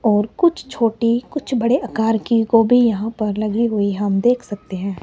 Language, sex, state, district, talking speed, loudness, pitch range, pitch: Hindi, male, Himachal Pradesh, Shimla, 190 wpm, -18 LUFS, 210-245 Hz, 225 Hz